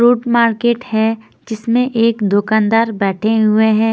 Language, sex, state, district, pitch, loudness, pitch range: Hindi, female, Bihar, Patna, 225 Hz, -14 LUFS, 220-235 Hz